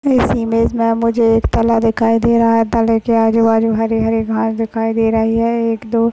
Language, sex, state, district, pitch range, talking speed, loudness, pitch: Hindi, female, Maharashtra, Chandrapur, 225-230 Hz, 205 wpm, -14 LUFS, 225 Hz